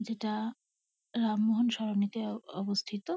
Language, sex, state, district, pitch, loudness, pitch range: Bengali, female, West Bengal, Kolkata, 220 Hz, -32 LUFS, 215-225 Hz